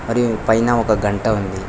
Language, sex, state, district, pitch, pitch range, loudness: Telugu, male, Telangana, Hyderabad, 110 Hz, 105-115 Hz, -17 LUFS